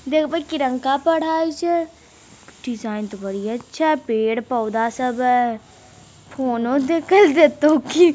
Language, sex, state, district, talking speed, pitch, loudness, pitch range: Magahi, female, Bihar, Jamui, 125 wpm, 270 Hz, -19 LUFS, 235-320 Hz